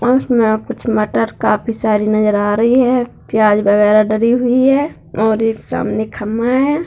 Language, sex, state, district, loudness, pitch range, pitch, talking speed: Hindi, male, Bihar, Madhepura, -14 LUFS, 215-245 Hz, 220 Hz, 165 wpm